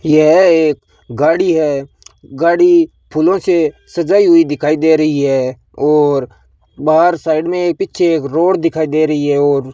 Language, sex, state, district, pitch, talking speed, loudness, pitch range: Hindi, male, Rajasthan, Bikaner, 155 Hz, 160 wpm, -13 LUFS, 140-170 Hz